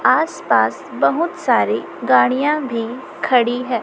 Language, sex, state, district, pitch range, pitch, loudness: Hindi, female, Chhattisgarh, Raipur, 240-285 Hz, 250 Hz, -18 LUFS